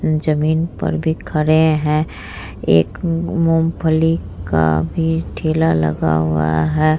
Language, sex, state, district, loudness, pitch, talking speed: Hindi, female, Bihar, Vaishali, -17 LUFS, 155 Hz, 120 wpm